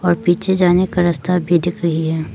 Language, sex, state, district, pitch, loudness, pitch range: Hindi, female, Arunachal Pradesh, Papum Pare, 175 Hz, -16 LUFS, 170-180 Hz